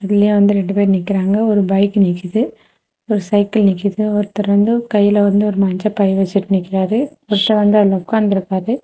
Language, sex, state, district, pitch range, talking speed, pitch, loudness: Tamil, female, Tamil Nadu, Kanyakumari, 195-210 Hz, 165 wpm, 205 Hz, -15 LUFS